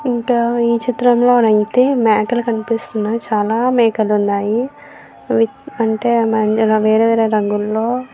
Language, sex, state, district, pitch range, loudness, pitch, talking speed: Telugu, female, Andhra Pradesh, Visakhapatnam, 215-245 Hz, -15 LUFS, 230 Hz, 105 wpm